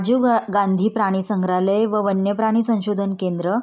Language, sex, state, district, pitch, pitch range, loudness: Marathi, female, Maharashtra, Pune, 205 Hz, 195-220 Hz, -20 LUFS